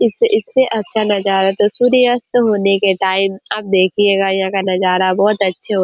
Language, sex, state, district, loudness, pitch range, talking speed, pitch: Hindi, female, Chhattisgarh, Korba, -14 LUFS, 190-220 Hz, 195 wpm, 200 Hz